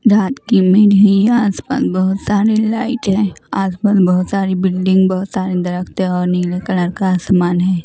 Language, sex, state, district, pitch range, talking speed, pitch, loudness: Hindi, female, Maharashtra, Mumbai Suburban, 180-205 Hz, 160 wpm, 190 Hz, -15 LUFS